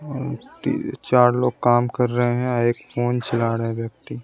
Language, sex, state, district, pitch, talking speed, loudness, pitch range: Hindi, male, Bihar, West Champaran, 120 Hz, 200 wpm, -21 LUFS, 115-125 Hz